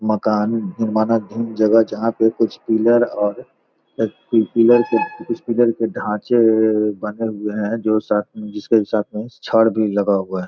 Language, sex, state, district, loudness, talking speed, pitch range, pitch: Hindi, male, Bihar, Gopalganj, -18 LUFS, 175 wpm, 105-115 Hz, 110 Hz